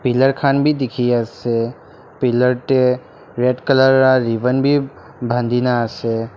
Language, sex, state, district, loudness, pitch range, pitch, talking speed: Nagamese, male, Nagaland, Dimapur, -17 LUFS, 120-135 Hz, 125 Hz, 115 wpm